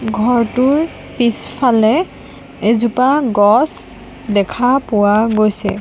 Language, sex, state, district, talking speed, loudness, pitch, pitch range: Assamese, female, Assam, Sonitpur, 70 wpm, -14 LUFS, 230 Hz, 215-250 Hz